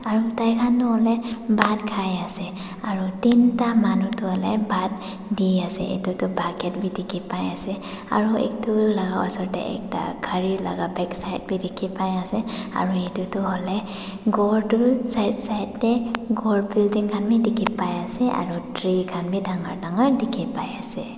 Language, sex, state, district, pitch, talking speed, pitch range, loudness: Nagamese, female, Nagaland, Dimapur, 210 Hz, 145 wpm, 190-230 Hz, -23 LUFS